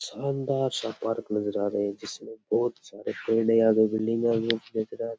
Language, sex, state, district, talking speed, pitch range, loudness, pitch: Rajasthani, male, Rajasthan, Churu, 195 wpm, 110-115 Hz, -27 LUFS, 115 Hz